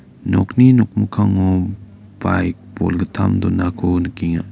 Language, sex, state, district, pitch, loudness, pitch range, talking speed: Garo, male, Meghalaya, West Garo Hills, 95 Hz, -17 LUFS, 90-105 Hz, 80 wpm